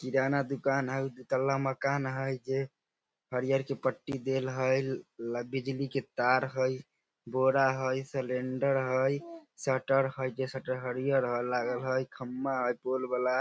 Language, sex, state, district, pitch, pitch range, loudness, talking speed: Maithili, male, Bihar, Samastipur, 130 Hz, 130-135 Hz, -31 LUFS, 150 wpm